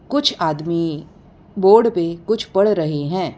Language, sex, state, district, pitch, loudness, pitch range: Hindi, female, Gujarat, Valsad, 185 Hz, -18 LUFS, 165-215 Hz